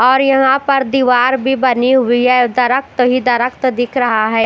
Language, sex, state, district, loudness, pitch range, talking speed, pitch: Hindi, female, Chandigarh, Chandigarh, -13 LUFS, 245-265 Hz, 190 wpm, 255 Hz